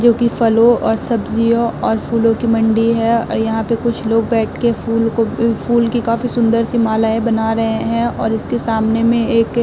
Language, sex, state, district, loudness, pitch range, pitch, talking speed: Hindi, female, Uttar Pradesh, Muzaffarnagar, -15 LUFS, 225-235 Hz, 230 Hz, 200 wpm